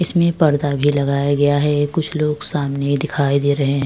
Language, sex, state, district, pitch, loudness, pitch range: Hindi, female, Uttar Pradesh, Jyotiba Phule Nagar, 145 Hz, -18 LUFS, 140-150 Hz